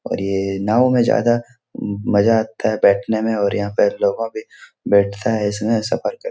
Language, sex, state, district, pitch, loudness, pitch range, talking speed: Hindi, male, Bihar, Jahanabad, 110 Hz, -18 LUFS, 100-115 Hz, 200 wpm